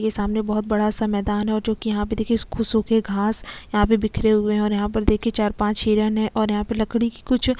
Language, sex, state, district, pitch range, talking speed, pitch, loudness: Hindi, female, Chhattisgarh, Kabirdham, 210-220 Hz, 275 wpm, 215 Hz, -22 LUFS